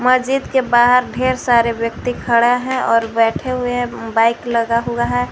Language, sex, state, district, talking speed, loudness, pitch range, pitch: Hindi, female, Jharkhand, Garhwa, 180 wpm, -16 LUFS, 230-250 Hz, 240 Hz